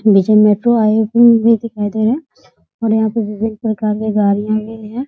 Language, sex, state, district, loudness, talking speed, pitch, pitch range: Hindi, female, Bihar, Muzaffarpur, -14 LUFS, 165 wpm, 220 Hz, 210-230 Hz